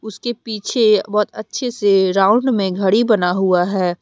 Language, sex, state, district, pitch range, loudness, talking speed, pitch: Hindi, female, Jharkhand, Deoghar, 190-220 Hz, -17 LUFS, 165 wpm, 210 Hz